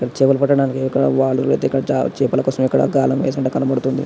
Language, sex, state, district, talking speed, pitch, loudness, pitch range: Telugu, male, Telangana, Nalgonda, 135 wpm, 135 Hz, -17 LUFS, 130-135 Hz